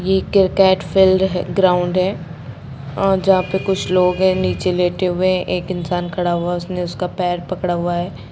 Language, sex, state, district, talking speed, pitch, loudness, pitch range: Hindi, female, Bihar, Sitamarhi, 195 wpm, 180 Hz, -17 LUFS, 175-185 Hz